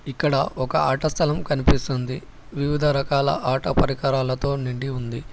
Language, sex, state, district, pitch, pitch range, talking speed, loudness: Telugu, male, Telangana, Hyderabad, 135 Hz, 130-145 Hz, 110 wpm, -23 LUFS